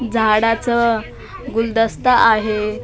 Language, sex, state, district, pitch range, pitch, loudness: Marathi, female, Maharashtra, Mumbai Suburban, 215-235 Hz, 225 Hz, -16 LUFS